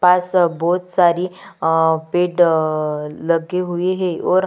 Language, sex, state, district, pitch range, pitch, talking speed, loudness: Hindi, female, Chhattisgarh, Kabirdham, 160-180 Hz, 175 Hz, 120 wpm, -18 LUFS